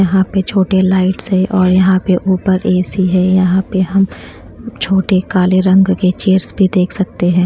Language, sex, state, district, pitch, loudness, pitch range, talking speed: Hindi, female, Haryana, Charkhi Dadri, 190 Hz, -13 LUFS, 185-190 Hz, 185 wpm